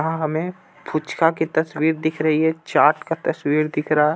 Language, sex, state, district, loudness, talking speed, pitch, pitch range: Hindi, male, Jharkhand, Ranchi, -21 LUFS, 185 wpm, 155 Hz, 155-160 Hz